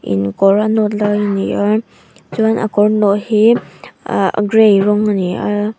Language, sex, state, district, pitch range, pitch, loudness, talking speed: Mizo, female, Mizoram, Aizawl, 200-215 Hz, 210 Hz, -14 LUFS, 185 wpm